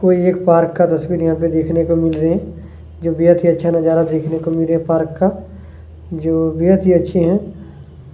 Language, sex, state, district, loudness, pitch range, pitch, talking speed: Hindi, male, Chhattisgarh, Kabirdham, -15 LUFS, 160-175 Hz, 165 Hz, 230 wpm